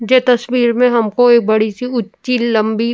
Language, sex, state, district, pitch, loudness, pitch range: Hindi, female, Uttar Pradesh, Jyotiba Phule Nagar, 240 Hz, -14 LUFS, 225-250 Hz